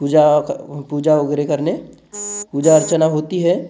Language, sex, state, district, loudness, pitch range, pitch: Hindi, male, Maharashtra, Gondia, -17 LUFS, 145-170 Hz, 155 Hz